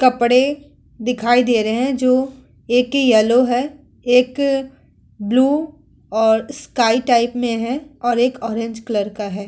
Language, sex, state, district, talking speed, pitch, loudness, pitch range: Hindi, female, Uttar Pradesh, Muzaffarnagar, 145 wpm, 245 Hz, -17 LUFS, 230-265 Hz